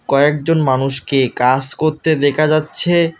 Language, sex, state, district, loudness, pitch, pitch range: Bengali, male, West Bengal, Alipurduar, -15 LUFS, 150 Hz, 135-155 Hz